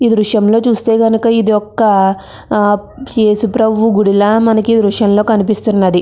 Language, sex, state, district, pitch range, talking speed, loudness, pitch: Telugu, female, Andhra Pradesh, Krishna, 205-225 Hz, 170 wpm, -12 LUFS, 215 Hz